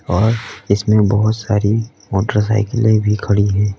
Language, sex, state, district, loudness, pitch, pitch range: Hindi, male, Uttar Pradesh, Lalitpur, -16 LUFS, 105 Hz, 100-110 Hz